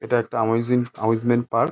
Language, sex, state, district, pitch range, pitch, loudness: Bengali, male, West Bengal, Paschim Medinipur, 115-120 Hz, 115 Hz, -22 LUFS